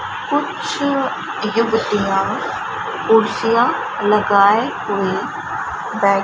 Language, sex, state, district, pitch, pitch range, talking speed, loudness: Hindi, male, Rajasthan, Bikaner, 225 Hz, 210-290 Hz, 65 wpm, -18 LUFS